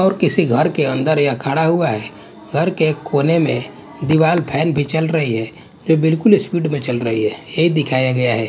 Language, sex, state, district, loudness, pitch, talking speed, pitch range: Hindi, male, Punjab, Fazilka, -17 LUFS, 155 Hz, 210 wpm, 130-165 Hz